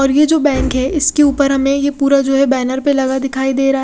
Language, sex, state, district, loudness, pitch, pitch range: Hindi, female, Odisha, Khordha, -14 LUFS, 275 Hz, 265-285 Hz